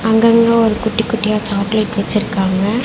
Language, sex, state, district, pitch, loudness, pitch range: Tamil, female, Tamil Nadu, Chennai, 220 Hz, -15 LUFS, 205-225 Hz